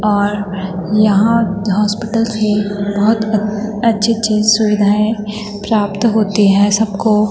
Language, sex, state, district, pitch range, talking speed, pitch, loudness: Hindi, female, Uttarakhand, Tehri Garhwal, 205-220 Hz, 100 wpm, 210 Hz, -14 LUFS